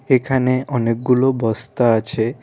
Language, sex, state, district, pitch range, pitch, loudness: Bengali, male, Tripura, West Tripura, 115-130 Hz, 125 Hz, -18 LUFS